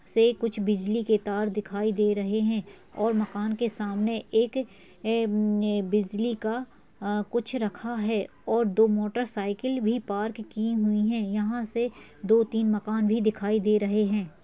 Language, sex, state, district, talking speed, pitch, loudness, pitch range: Hindi, female, Uttar Pradesh, Hamirpur, 160 wpm, 215 Hz, -27 LUFS, 210-225 Hz